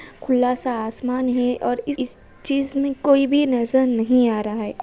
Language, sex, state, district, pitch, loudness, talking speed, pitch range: Hindi, female, Uttar Pradesh, Ghazipur, 250 Hz, -20 LUFS, 185 wpm, 240-275 Hz